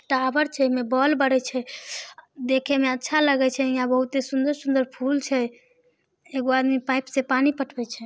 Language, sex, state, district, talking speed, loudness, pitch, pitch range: Maithili, female, Bihar, Samastipur, 170 wpm, -23 LUFS, 265 Hz, 260-280 Hz